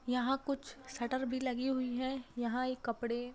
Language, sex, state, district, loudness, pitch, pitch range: Hindi, female, Bihar, Gopalganj, -37 LUFS, 255 Hz, 245-260 Hz